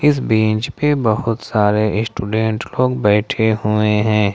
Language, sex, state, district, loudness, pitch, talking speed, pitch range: Hindi, male, Jharkhand, Ranchi, -17 LUFS, 110 Hz, 140 wpm, 105-115 Hz